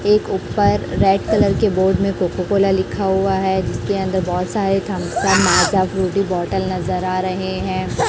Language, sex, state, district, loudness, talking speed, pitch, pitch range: Hindi, female, Chhattisgarh, Raipur, -18 LUFS, 180 wpm, 190 Hz, 185-195 Hz